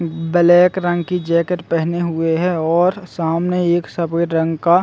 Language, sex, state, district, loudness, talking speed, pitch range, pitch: Hindi, male, Chhattisgarh, Bilaspur, -17 LUFS, 175 wpm, 165-180 Hz, 170 Hz